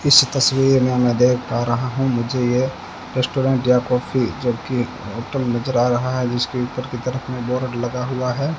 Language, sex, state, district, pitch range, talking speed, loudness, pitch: Hindi, male, Rajasthan, Bikaner, 120-130 Hz, 195 wpm, -20 LUFS, 125 Hz